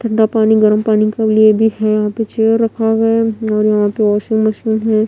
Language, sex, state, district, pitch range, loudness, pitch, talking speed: Hindi, female, Bihar, Katihar, 215-225 Hz, -13 LUFS, 220 Hz, 250 wpm